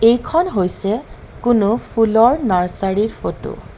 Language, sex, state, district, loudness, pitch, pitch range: Assamese, female, Assam, Kamrup Metropolitan, -17 LUFS, 225 Hz, 195-240 Hz